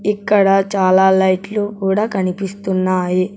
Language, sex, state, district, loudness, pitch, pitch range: Telugu, male, Telangana, Hyderabad, -16 LUFS, 190 Hz, 185-200 Hz